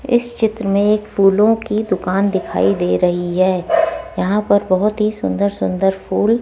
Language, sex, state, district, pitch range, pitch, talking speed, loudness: Hindi, female, Rajasthan, Jaipur, 185-220 Hz, 200 Hz, 175 wpm, -16 LUFS